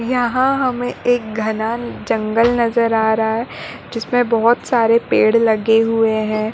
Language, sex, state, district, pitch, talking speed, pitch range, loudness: Hindi, female, Chhattisgarh, Bilaspur, 230 Hz, 145 wpm, 220-240 Hz, -16 LUFS